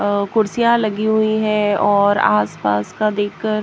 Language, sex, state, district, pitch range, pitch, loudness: Hindi, female, Haryana, Jhajjar, 200-215 Hz, 205 Hz, -17 LUFS